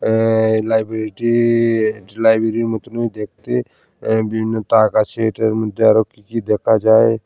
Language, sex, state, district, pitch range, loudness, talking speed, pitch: Bengali, male, Tripura, Unakoti, 110-115 Hz, -17 LUFS, 150 wpm, 110 Hz